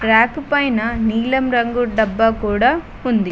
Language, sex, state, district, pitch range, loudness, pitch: Telugu, female, Telangana, Mahabubabad, 220-250 Hz, -17 LUFS, 235 Hz